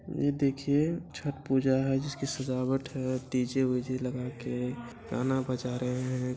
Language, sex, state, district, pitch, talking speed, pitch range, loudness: Angika, male, Bihar, Begusarai, 130 Hz, 140 wpm, 125-135 Hz, -31 LUFS